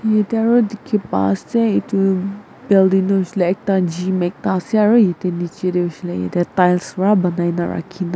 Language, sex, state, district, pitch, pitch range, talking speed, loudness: Nagamese, female, Nagaland, Kohima, 190 Hz, 175-210 Hz, 190 wpm, -17 LUFS